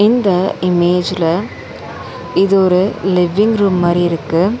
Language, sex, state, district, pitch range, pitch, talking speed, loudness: Tamil, female, Tamil Nadu, Chennai, 175-195 Hz, 185 Hz, 105 wpm, -14 LUFS